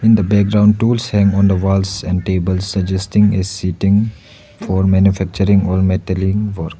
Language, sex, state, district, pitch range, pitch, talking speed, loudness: English, male, Arunachal Pradesh, Lower Dibang Valley, 95-105 Hz, 95 Hz, 160 wpm, -15 LUFS